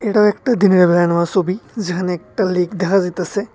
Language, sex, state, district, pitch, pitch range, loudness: Bengali, male, Tripura, West Tripura, 185 Hz, 180-205 Hz, -16 LUFS